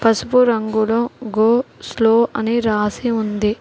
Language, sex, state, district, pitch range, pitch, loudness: Telugu, female, Telangana, Hyderabad, 215-235 Hz, 225 Hz, -17 LUFS